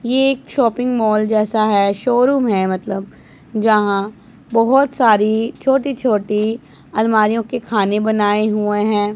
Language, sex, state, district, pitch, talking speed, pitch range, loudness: Hindi, female, Punjab, Pathankot, 220 Hz, 130 wpm, 210-240 Hz, -16 LUFS